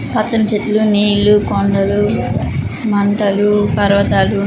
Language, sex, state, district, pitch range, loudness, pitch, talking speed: Telugu, female, Andhra Pradesh, Krishna, 200-210 Hz, -14 LUFS, 205 Hz, 80 wpm